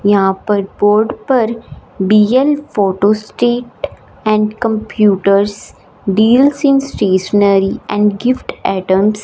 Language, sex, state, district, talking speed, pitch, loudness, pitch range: Hindi, female, Punjab, Fazilka, 105 wpm, 210 Hz, -13 LUFS, 200-240 Hz